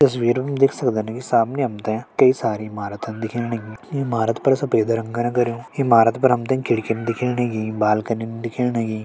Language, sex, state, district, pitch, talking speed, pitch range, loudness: Hindi, male, Uttarakhand, Tehri Garhwal, 115 Hz, 185 wpm, 110-125 Hz, -21 LUFS